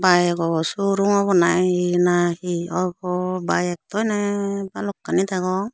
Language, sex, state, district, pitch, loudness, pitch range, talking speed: Chakma, female, Tripura, Unakoti, 185 Hz, -21 LUFS, 175-200 Hz, 155 wpm